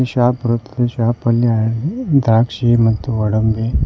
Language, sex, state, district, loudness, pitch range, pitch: Kannada, male, Karnataka, Koppal, -16 LUFS, 115-120 Hz, 120 Hz